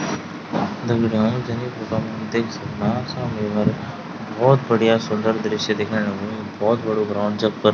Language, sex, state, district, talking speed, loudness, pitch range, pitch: Garhwali, male, Uttarakhand, Tehri Garhwal, 155 wpm, -22 LUFS, 105-115 Hz, 110 Hz